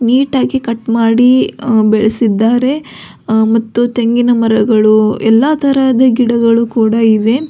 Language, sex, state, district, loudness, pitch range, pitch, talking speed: Kannada, female, Karnataka, Belgaum, -11 LUFS, 225-250 Hz, 230 Hz, 120 wpm